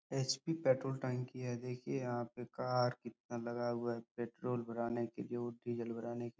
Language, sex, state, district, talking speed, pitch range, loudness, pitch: Hindi, male, Bihar, Supaul, 195 wpm, 120-125 Hz, -40 LUFS, 120 Hz